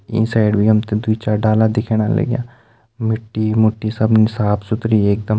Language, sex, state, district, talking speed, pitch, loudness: Hindi, male, Uttarakhand, Uttarkashi, 180 wpm, 110 Hz, -17 LUFS